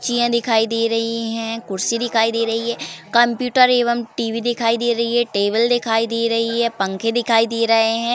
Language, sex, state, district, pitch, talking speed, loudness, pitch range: Hindi, female, Uttar Pradesh, Jalaun, 230 Hz, 200 wpm, -18 LUFS, 225-235 Hz